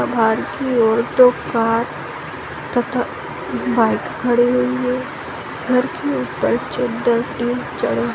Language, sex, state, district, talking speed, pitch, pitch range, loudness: Hindi, female, Bihar, Saran, 125 wpm, 245 Hz, 235-250 Hz, -19 LUFS